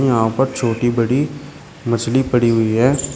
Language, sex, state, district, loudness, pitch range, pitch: Hindi, male, Uttar Pradesh, Shamli, -17 LUFS, 115-135 Hz, 125 Hz